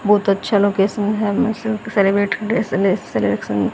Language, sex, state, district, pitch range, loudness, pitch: Hindi, female, Haryana, Rohtak, 195-215 Hz, -18 LUFS, 200 Hz